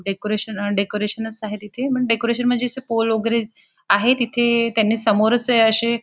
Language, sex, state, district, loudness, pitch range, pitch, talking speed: Marathi, female, Maharashtra, Nagpur, -19 LUFS, 215-235 Hz, 225 Hz, 140 wpm